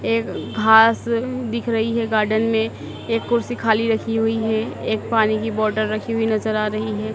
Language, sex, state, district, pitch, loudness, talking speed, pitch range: Hindi, female, Madhya Pradesh, Dhar, 220 Hz, -20 LUFS, 195 wpm, 215-230 Hz